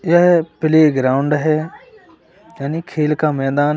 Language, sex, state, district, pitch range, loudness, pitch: Hindi, male, Uttar Pradesh, Lalitpur, 145-165 Hz, -16 LUFS, 155 Hz